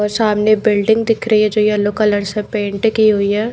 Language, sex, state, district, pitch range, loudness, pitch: Hindi, female, Maharashtra, Mumbai Suburban, 210-220 Hz, -15 LUFS, 215 Hz